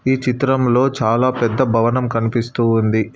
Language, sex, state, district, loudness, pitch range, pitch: Telugu, male, Telangana, Hyderabad, -17 LUFS, 115-130 Hz, 120 Hz